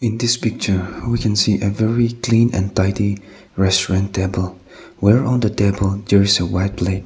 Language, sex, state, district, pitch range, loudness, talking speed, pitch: English, male, Nagaland, Kohima, 95-115 Hz, -18 LUFS, 185 wpm, 100 Hz